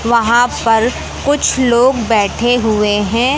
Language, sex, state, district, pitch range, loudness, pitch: Hindi, male, Madhya Pradesh, Katni, 225-245 Hz, -13 LUFS, 235 Hz